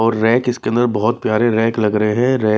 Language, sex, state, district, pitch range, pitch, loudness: Hindi, male, Bihar, Patna, 110-120 Hz, 115 Hz, -16 LUFS